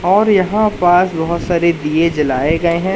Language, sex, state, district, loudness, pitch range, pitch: Hindi, male, Madhya Pradesh, Katni, -14 LUFS, 165-190 Hz, 170 Hz